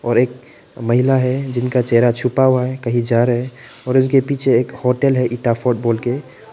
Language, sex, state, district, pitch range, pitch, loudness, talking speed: Hindi, male, Arunachal Pradesh, Papum Pare, 120-130 Hz, 125 Hz, -17 LUFS, 195 wpm